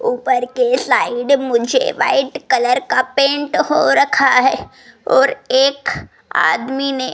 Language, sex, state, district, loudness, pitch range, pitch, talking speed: Hindi, female, Rajasthan, Jaipur, -15 LUFS, 255-385 Hz, 275 Hz, 135 wpm